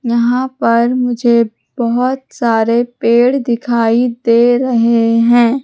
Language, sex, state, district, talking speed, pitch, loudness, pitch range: Hindi, female, Madhya Pradesh, Katni, 105 wpm, 235 Hz, -13 LUFS, 230-245 Hz